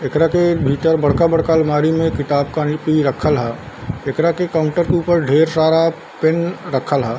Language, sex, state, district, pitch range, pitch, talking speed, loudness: Hindi, male, Bihar, Darbhanga, 145-165 Hz, 160 Hz, 190 wpm, -16 LUFS